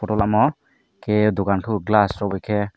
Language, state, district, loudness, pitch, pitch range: Kokborok, Tripura, Dhalai, -20 LUFS, 105 Hz, 100-105 Hz